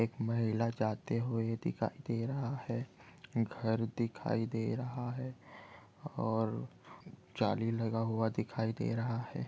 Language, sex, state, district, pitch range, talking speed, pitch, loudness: Hindi, male, Maharashtra, Aurangabad, 110-120 Hz, 135 wpm, 115 Hz, -36 LUFS